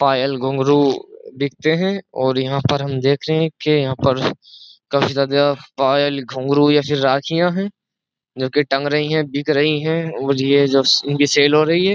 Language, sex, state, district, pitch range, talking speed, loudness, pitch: Hindi, male, Uttar Pradesh, Jyotiba Phule Nagar, 135-155 Hz, 190 wpm, -17 LUFS, 145 Hz